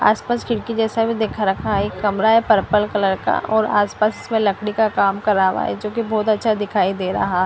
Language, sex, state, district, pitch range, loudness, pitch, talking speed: Hindi, female, Punjab, Fazilka, 200-220 Hz, -19 LUFS, 210 Hz, 240 wpm